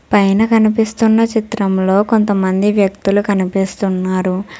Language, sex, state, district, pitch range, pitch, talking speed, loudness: Telugu, female, Telangana, Hyderabad, 190-220 Hz, 200 Hz, 80 wpm, -14 LUFS